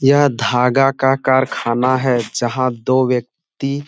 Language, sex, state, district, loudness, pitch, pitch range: Hindi, male, Bihar, Supaul, -16 LUFS, 130 Hz, 125-135 Hz